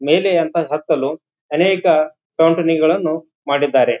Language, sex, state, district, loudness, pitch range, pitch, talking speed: Kannada, male, Karnataka, Bijapur, -17 LUFS, 155-170 Hz, 160 Hz, 105 wpm